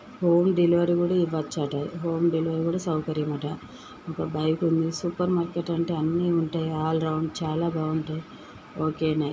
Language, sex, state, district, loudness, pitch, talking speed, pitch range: Telugu, male, Andhra Pradesh, Guntur, -26 LUFS, 165 Hz, 140 wpm, 155-170 Hz